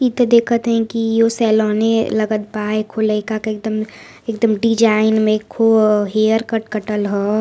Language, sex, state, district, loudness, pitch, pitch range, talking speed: Hindi, female, Uttar Pradesh, Varanasi, -16 LUFS, 220 Hz, 215-225 Hz, 155 wpm